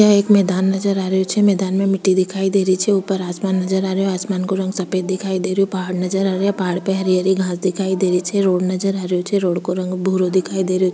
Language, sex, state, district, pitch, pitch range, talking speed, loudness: Rajasthani, female, Rajasthan, Churu, 190 Hz, 185-195 Hz, 285 wpm, -18 LUFS